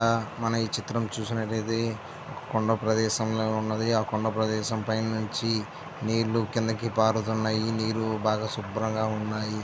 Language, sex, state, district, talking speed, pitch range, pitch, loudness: Telugu, male, Andhra Pradesh, Visakhapatnam, 180 wpm, 110-115 Hz, 110 Hz, -28 LUFS